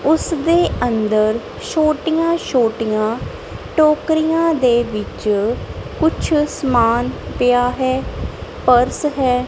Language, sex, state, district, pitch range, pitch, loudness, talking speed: Punjabi, female, Punjab, Kapurthala, 235-310 Hz, 255 Hz, -17 LUFS, 90 wpm